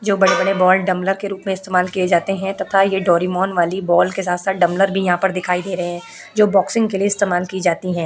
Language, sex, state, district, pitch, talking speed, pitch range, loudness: Hindi, female, Uttar Pradesh, Budaun, 190 Hz, 255 wpm, 180-195 Hz, -17 LUFS